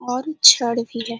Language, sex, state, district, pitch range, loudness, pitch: Hindi, female, Bihar, Jahanabad, 235-300 Hz, -15 LUFS, 245 Hz